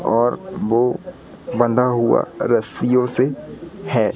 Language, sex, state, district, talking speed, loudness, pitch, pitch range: Hindi, male, Madhya Pradesh, Katni, 100 wpm, -19 LUFS, 125 Hz, 120-140 Hz